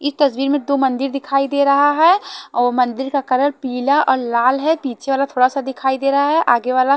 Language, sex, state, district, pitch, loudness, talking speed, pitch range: Hindi, female, Haryana, Charkhi Dadri, 275 Hz, -17 LUFS, 230 wpm, 255-285 Hz